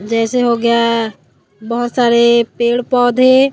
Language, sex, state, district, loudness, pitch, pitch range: Hindi, female, Chhattisgarh, Raipur, -13 LUFS, 235 Hz, 230-245 Hz